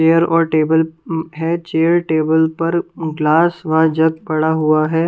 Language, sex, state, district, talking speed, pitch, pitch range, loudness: Hindi, female, Punjab, Kapurthala, 190 wpm, 160 Hz, 160-165 Hz, -16 LUFS